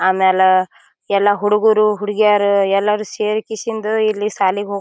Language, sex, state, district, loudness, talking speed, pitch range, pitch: Kannada, female, Karnataka, Bijapur, -16 LUFS, 125 wpm, 200-215 Hz, 210 Hz